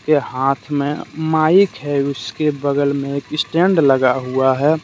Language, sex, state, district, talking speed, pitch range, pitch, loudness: Hindi, male, Jharkhand, Deoghar, 160 wpm, 135-155 Hz, 145 Hz, -17 LUFS